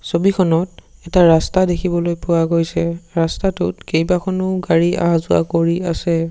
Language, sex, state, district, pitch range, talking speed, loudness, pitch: Assamese, male, Assam, Sonitpur, 165-180 Hz, 125 wpm, -17 LUFS, 170 Hz